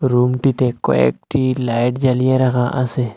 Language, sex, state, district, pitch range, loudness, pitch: Bengali, male, Assam, Hailakandi, 120-130 Hz, -17 LUFS, 125 Hz